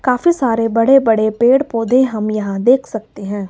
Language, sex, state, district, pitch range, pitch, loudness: Hindi, male, Himachal Pradesh, Shimla, 215-260 Hz, 230 Hz, -14 LUFS